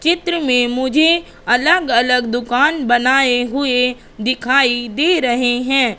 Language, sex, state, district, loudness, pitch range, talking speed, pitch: Hindi, female, Madhya Pradesh, Katni, -15 LUFS, 245-295 Hz, 120 wpm, 250 Hz